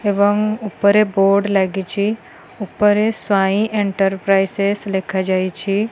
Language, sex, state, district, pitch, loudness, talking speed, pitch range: Odia, female, Odisha, Khordha, 200 Hz, -17 LUFS, 80 wpm, 195-210 Hz